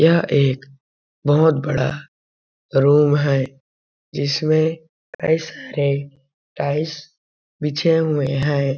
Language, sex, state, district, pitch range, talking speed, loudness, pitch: Hindi, male, Chhattisgarh, Balrampur, 135-155 Hz, 95 wpm, -19 LUFS, 145 Hz